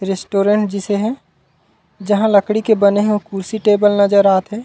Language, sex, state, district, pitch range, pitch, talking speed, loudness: Chhattisgarhi, male, Chhattisgarh, Raigarh, 200-210 Hz, 205 Hz, 165 wpm, -15 LUFS